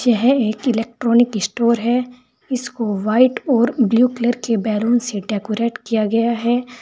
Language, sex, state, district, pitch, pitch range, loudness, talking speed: Hindi, female, Uttar Pradesh, Saharanpur, 235 Hz, 220-245 Hz, -18 LUFS, 150 wpm